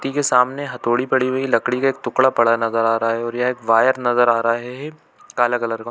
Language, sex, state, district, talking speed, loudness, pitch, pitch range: Hindi, male, Chhattisgarh, Bilaspur, 285 wpm, -18 LUFS, 120 Hz, 115-130 Hz